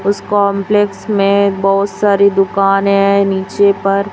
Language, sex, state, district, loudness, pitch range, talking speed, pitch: Hindi, female, Chhattisgarh, Raipur, -13 LUFS, 195-200 Hz, 130 wpm, 200 Hz